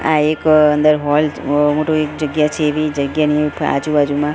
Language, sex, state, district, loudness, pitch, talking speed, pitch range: Gujarati, female, Gujarat, Gandhinagar, -15 LUFS, 150 Hz, 165 wpm, 150-155 Hz